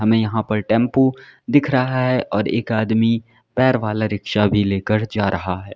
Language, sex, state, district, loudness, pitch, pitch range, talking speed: Hindi, male, Uttar Pradesh, Lalitpur, -19 LUFS, 110 Hz, 105-125 Hz, 190 wpm